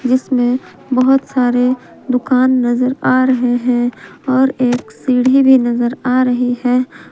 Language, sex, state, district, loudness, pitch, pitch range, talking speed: Hindi, female, Jharkhand, Palamu, -14 LUFS, 255 Hz, 245-260 Hz, 135 wpm